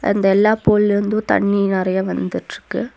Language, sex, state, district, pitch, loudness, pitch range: Tamil, female, Tamil Nadu, Nilgiris, 200 Hz, -17 LUFS, 190-210 Hz